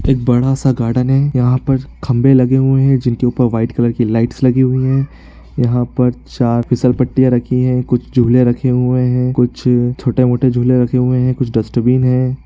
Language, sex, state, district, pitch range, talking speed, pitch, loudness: Hindi, male, Bihar, East Champaran, 125-130 Hz, 195 wpm, 125 Hz, -14 LUFS